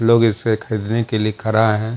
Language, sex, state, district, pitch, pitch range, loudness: Hindi, male, Bihar, Jamui, 110 Hz, 110-115 Hz, -18 LUFS